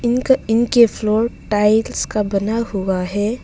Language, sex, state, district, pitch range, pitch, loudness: Hindi, female, Arunachal Pradesh, Papum Pare, 210-235 Hz, 220 Hz, -17 LUFS